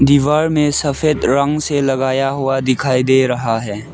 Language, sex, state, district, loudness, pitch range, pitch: Hindi, male, Arunachal Pradesh, Lower Dibang Valley, -15 LUFS, 130-145 Hz, 135 Hz